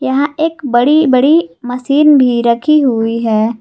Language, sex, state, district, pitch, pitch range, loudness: Hindi, female, Jharkhand, Garhwa, 260 Hz, 235-295 Hz, -11 LUFS